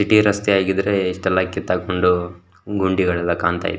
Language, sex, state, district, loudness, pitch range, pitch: Kannada, male, Karnataka, Shimoga, -19 LUFS, 90-95 Hz, 95 Hz